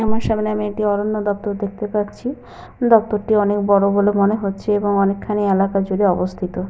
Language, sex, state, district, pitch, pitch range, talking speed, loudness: Bengali, female, Jharkhand, Sahebganj, 205 Hz, 200-210 Hz, 180 wpm, -18 LUFS